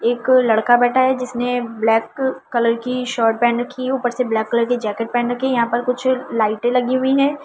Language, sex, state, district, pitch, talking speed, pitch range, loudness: Hindi, female, Delhi, New Delhi, 245 Hz, 225 wpm, 235-255 Hz, -18 LUFS